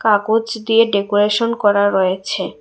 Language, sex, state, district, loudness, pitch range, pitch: Bengali, female, Tripura, West Tripura, -16 LUFS, 200-225 Hz, 205 Hz